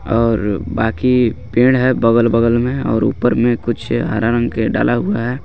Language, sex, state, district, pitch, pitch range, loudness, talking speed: Hindi, male, Jharkhand, Garhwa, 115 Hz, 110-120 Hz, -16 LUFS, 185 wpm